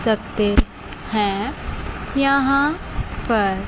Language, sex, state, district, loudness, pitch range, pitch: Hindi, female, Chandigarh, Chandigarh, -21 LUFS, 205-275 Hz, 225 Hz